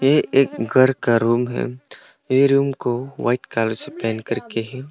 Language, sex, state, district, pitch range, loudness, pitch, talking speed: Hindi, male, Arunachal Pradesh, Longding, 115-135 Hz, -20 LUFS, 125 Hz, 185 wpm